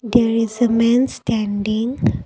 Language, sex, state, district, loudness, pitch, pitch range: English, female, Assam, Kamrup Metropolitan, -18 LUFS, 230 Hz, 220-240 Hz